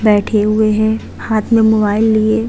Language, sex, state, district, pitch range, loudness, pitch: Hindi, female, Uttar Pradesh, Budaun, 215-220 Hz, -13 LUFS, 215 Hz